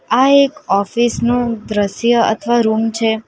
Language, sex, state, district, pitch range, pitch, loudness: Gujarati, female, Gujarat, Valsad, 220-240 Hz, 230 Hz, -15 LUFS